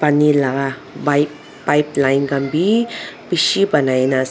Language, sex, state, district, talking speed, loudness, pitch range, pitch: Nagamese, female, Nagaland, Dimapur, 155 wpm, -17 LUFS, 135-150 Hz, 145 Hz